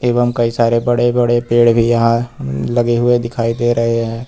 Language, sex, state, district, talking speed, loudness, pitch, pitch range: Hindi, male, Uttar Pradesh, Lucknow, 195 wpm, -14 LUFS, 120 Hz, 115-120 Hz